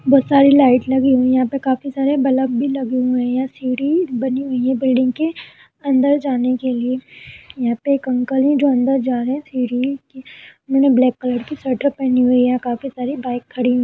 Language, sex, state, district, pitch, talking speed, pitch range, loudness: Hindi, female, Uttar Pradesh, Budaun, 260 Hz, 220 wpm, 250-275 Hz, -17 LUFS